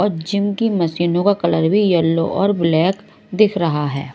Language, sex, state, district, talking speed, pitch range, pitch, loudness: Hindi, male, Odisha, Malkangiri, 190 wpm, 165-200 Hz, 175 Hz, -17 LUFS